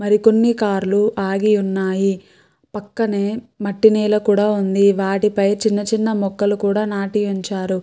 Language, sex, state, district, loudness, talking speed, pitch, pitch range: Telugu, female, Andhra Pradesh, Chittoor, -18 LUFS, 145 wpm, 205 Hz, 195-210 Hz